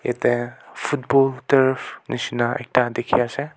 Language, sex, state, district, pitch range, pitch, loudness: Nagamese, male, Nagaland, Kohima, 120-135 Hz, 125 Hz, -21 LUFS